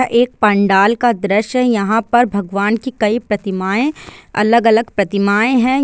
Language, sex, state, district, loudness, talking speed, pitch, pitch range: Hindi, female, Bihar, Sitamarhi, -15 LUFS, 155 wpm, 220 Hz, 200-240 Hz